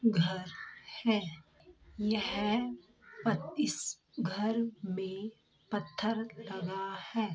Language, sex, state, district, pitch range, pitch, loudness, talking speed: Hindi, female, Bihar, Begusarai, 190-225 Hz, 210 Hz, -35 LUFS, 80 wpm